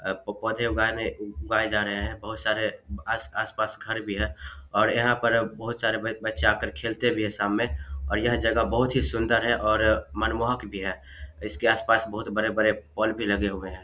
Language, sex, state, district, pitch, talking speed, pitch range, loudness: Hindi, male, Bihar, Samastipur, 110 Hz, 190 wpm, 100-115 Hz, -26 LUFS